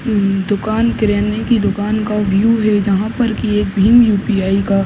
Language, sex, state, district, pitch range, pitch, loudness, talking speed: Hindi, male, Uttar Pradesh, Gorakhpur, 200-220 Hz, 210 Hz, -15 LUFS, 185 wpm